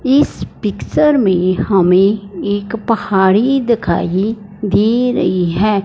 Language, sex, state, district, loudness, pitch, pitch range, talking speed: Hindi, male, Punjab, Fazilka, -14 LUFS, 205 Hz, 190-230 Hz, 105 wpm